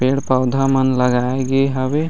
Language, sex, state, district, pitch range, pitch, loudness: Chhattisgarhi, male, Chhattisgarh, Raigarh, 130-135 Hz, 130 Hz, -17 LUFS